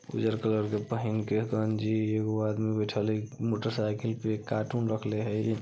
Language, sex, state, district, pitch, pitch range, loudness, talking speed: Hindi, female, Bihar, Darbhanga, 110 Hz, 105-110 Hz, -30 LUFS, 180 wpm